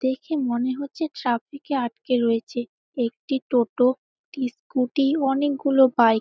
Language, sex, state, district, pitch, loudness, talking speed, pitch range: Bengali, female, West Bengal, Jalpaiguri, 260 Hz, -23 LUFS, 145 wpm, 240-280 Hz